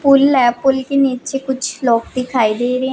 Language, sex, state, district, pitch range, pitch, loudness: Hindi, female, Punjab, Pathankot, 245-270 Hz, 265 Hz, -16 LUFS